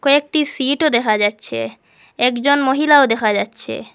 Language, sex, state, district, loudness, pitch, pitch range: Bengali, female, Assam, Hailakandi, -16 LUFS, 265 Hz, 215-290 Hz